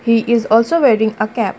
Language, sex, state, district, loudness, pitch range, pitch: English, female, Assam, Kamrup Metropolitan, -14 LUFS, 220-235 Hz, 230 Hz